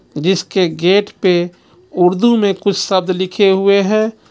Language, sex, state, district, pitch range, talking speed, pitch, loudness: Hindi, male, Jharkhand, Ranchi, 185-205 Hz, 140 wpm, 190 Hz, -14 LUFS